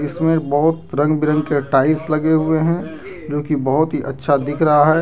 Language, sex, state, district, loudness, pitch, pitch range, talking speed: Hindi, male, Jharkhand, Deoghar, -17 LUFS, 155 Hz, 145-160 Hz, 205 wpm